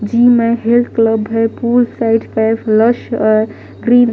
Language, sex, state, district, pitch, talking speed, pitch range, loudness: Hindi, female, Delhi, New Delhi, 230 Hz, 160 wpm, 225-240 Hz, -13 LUFS